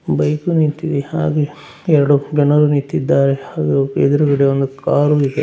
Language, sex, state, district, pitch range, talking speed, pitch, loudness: Kannada, male, Karnataka, Dakshina Kannada, 140-150 Hz, 145 wpm, 145 Hz, -16 LUFS